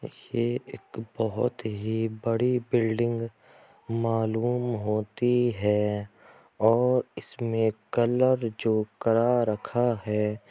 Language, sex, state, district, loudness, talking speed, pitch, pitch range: Hindi, male, Uttar Pradesh, Jyotiba Phule Nagar, -27 LUFS, 90 wpm, 115 Hz, 110-120 Hz